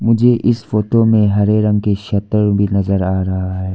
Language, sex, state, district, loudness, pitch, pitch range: Hindi, female, Arunachal Pradesh, Lower Dibang Valley, -15 LUFS, 105 Hz, 100-110 Hz